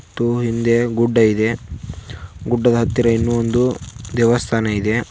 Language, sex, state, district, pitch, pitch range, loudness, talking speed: Kannada, male, Karnataka, Koppal, 115 Hz, 115-120 Hz, -17 LUFS, 105 wpm